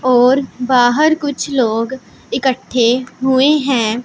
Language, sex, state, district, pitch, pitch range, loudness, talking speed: Hindi, female, Punjab, Pathankot, 260 Hz, 245-270 Hz, -14 LUFS, 105 wpm